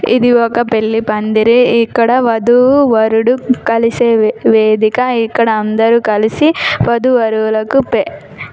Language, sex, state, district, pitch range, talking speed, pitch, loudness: Telugu, female, Telangana, Nalgonda, 220-245 Hz, 100 wpm, 230 Hz, -11 LUFS